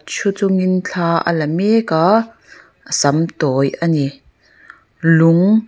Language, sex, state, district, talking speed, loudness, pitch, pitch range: Mizo, female, Mizoram, Aizawl, 125 wpm, -16 LUFS, 170 Hz, 160-195 Hz